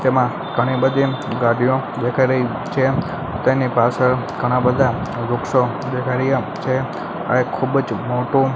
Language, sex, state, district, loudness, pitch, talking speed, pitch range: Gujarati, male, Gujarat, Gandhinagar, -19 LUFS, 125 Hz, 135 wpm, 125-130 Hz